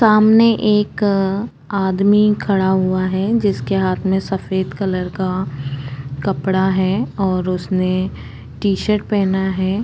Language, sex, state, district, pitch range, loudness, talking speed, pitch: Hindi, female, Uttarakhand, Tehri Garhwal, 185-205 Hz, -17 LUFS, 115 wpm, 190 Hz